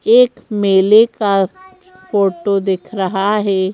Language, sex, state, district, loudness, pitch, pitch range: Hindi, female, Madhya Pradesh, Bhopal, -15 LUFS, 205 Hz, 195-235 Hz